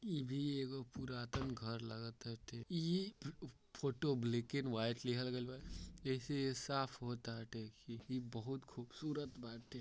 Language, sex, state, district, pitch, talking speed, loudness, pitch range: Bhojpuri, male, Uttar Pradesh, Deoria, 125 Hz, 135 wpm, -44 LUFS, 115-135 Hz